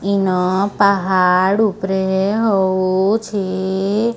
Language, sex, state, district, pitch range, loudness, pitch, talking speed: Odia, female, Odisha, Sambalpur, 190-200 Hz, -16 LUFS, 195 Hz, 70 wpm